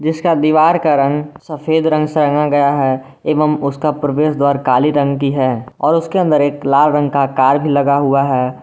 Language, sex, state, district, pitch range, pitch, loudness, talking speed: Hindi, male, Jharkhand, Garhwa, 140-150 Hz, 145 Hz, -14 LUFS, 210 wpm